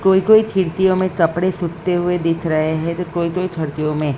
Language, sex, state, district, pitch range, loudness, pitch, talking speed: Hindi, female, Maharashtra, Mumbai Suburban, 160-185 Hz, -18 LUFS, 175 Hz, 200 wpm